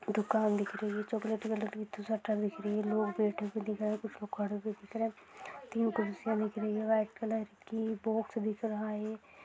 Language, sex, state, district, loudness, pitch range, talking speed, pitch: Hindi, female, Maharashtra, Chandrapur, -35 LUFS, 210-220 Hz, 190 wpm, 215 Hz